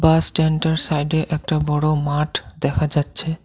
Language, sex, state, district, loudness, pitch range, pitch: Bengali, male, Assam, Kamrup Metropolitan, -20 LUFS, 150-160 Hz, 155 Hz